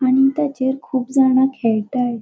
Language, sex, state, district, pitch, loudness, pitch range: Konkani, female, Goa, North and South Goa, 260 Hz, -18 LUFS, 250-270 Hz